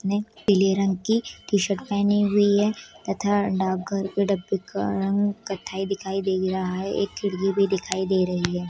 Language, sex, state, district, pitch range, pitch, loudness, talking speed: Hindi, female, Bihar, East Champaran, 190-205 Hz, 195 Hz, -24 LUFS, 185 wpm